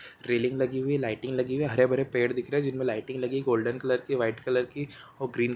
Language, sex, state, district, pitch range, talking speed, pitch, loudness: Hindi, male, Jharkhand, Jamtara, 125-135 Hz, 280 wpm, 130 Hz, -28 LUFS